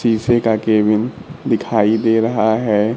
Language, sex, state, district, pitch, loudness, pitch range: Hindi, male, Bihar, Kaimur, 110 Hz, -16 LUFS, 110-115 Hz